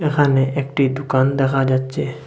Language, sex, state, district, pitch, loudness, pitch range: Bengali, male, Assam, Hailakandi, 135 Hz, -18 LUFS, 135-140 Hz